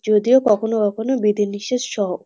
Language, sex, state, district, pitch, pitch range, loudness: Bengali, female, West Bengal, North 24 Parganas, 215 Hz, 205-245 Hz, -18 LUFS